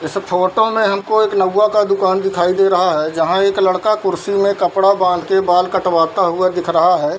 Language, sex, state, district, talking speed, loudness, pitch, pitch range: Hindi, male, Bihar, Darbhanga, 225 wpm, -15 LUFS, 190 Hz, 180-200 Hz